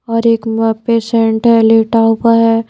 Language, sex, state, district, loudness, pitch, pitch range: Hindi, female, Bihar, Patna, -11 LUFS, 225 Hz, 225-230 Hz